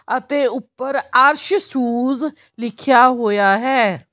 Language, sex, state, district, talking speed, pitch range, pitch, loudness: Punjabi, female, Chandigarh, Chandigarh, 100 wpm, 235-275 Hz, 255 Hz, -16 LUFS